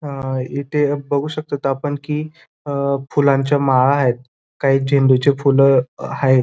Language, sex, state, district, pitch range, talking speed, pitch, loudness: Marathi, male, Maharashtra, Dhule, 135-145 Hz, 130 wpm, 140 Hz, -17 LUFS